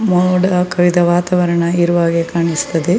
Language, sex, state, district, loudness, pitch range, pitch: Kannada, female, Karnataka, Dakshina Kannada, -14 LUFS, 170-180 Hz, 175 Hz